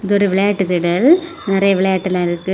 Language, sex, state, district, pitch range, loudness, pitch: Tamil, female, Tamil Nadu, Kanyakumari, 185-205 Hz, -15 LUFS, 195 Hz